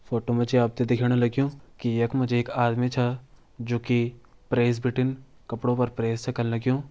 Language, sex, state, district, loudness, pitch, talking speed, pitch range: Garhwali, male, Uttarakhand, Tehri Garhwal, -26 LUFS, 120 Hz, 180 wpm, 120-125 Hz